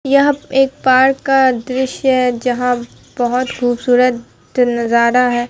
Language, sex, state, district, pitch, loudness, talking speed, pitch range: Hindi, female, Bihar, Katihar, 250 Hz, -14 LUFS, 120 wpm, 245-265 Hz